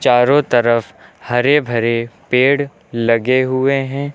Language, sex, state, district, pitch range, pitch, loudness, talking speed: Hindi, male, Uttar Pradesh, Lucknow, 115-140 Hz, 125 Hz, -15 LUFS, 115 wpm